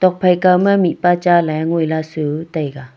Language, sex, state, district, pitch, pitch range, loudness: Wancho, female, Arunachal Pradesh, Longding, 170 Hz, 155-180 Hz, -16 LUFS